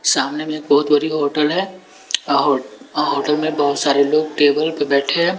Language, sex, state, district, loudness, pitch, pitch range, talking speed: Hindi, male, Bihar, West Champaran, -17 LUFS, 150 Hz, 145-155 Hz, 210 wpm